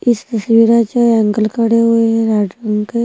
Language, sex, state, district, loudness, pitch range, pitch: Hindi, female, Himachal Pradesh, Shimla, -13 LUFS, 215-235 Hz, 230 Hz